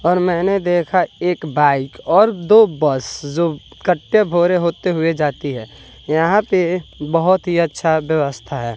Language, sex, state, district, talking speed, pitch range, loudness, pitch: Hindi, male, Bihar, West Champaran, 150 wpm, 150-180 Hz, -17 LUFS, 170 Hz